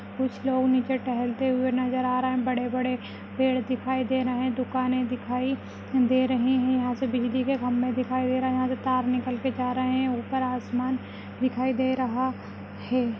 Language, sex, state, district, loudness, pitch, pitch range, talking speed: Kumaoni, female, Uttarakhand, Uttarkashi, -26 LUFS, 255 Hz, 250-260 Hz, 190 wpm